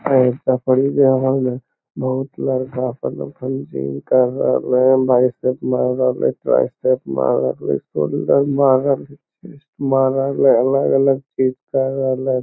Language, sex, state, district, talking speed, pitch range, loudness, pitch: Magahi, male, Bihar, Lakhisarai, 40 wpm, 130-135 Hz, -18 LUFS, 130 Hz